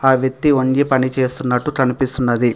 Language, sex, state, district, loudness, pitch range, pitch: Telugu, male, Telangana, Hyderabad, -17 LUFS, 125-135 Hz, 130 Hz